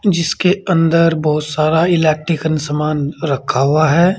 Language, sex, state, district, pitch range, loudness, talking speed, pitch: Hindi, male, Uttar Pradesh, Saharanpur, 150-170 Hz, -15 LUFS, 130 wpm, 160 Hz